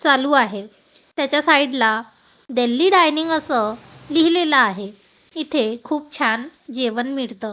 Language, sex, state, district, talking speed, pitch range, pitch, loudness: Marathi, female, Maharashtra, Gondia, 120 wpm, 230-305 Hz, 270 Hz, -18 LUFS